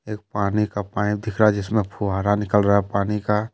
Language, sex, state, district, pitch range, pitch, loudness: Hindi, male, Jharkhand, Deoghar, 100-105 Hz, 105 Hz, -22 LUFS